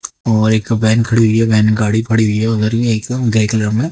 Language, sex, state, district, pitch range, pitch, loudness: Hindi, female, Haryana, Jhajjar, 110-115 Hz, 110 Hz, -14 LUFS